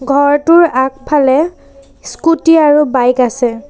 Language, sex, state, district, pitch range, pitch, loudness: Assamese, female, Assam, Sonitpur, 260-315 Hz, 280 Hz, -11 LUFS